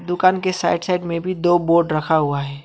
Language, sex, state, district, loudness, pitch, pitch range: Hindi, male, West Bengal, Alipurduar, -19 LUFS, 170 Hz, 160-180 Hz